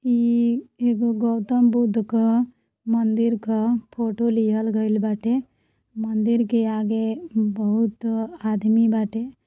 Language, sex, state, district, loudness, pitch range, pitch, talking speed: Bhojpuri, female, Uttar Pradesh, Deoria, -22 LUFS, 220-235 Hz, 225 Hz, 115 wpm